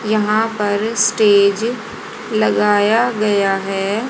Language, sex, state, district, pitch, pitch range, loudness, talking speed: Hindi, female, Haryana, Jhajjar, 215 Hz, 205-225 Hz, -16 LUFS, 90 wpm